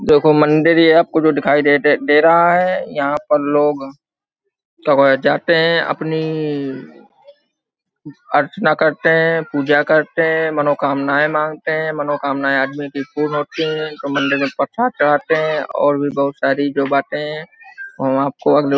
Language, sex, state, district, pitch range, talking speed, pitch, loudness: Hindi, male, Uttar Pradesh, Hamirpur, 140-160 Hz, 155 wpm, 150 Hz, -16 LUFS